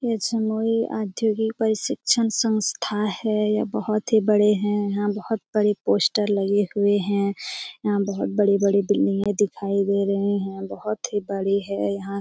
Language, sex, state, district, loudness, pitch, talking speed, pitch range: Hindi, female, Bihar, Jamui, -23 LUFS, 205 Hz, 150 wpm, 200-220 Hz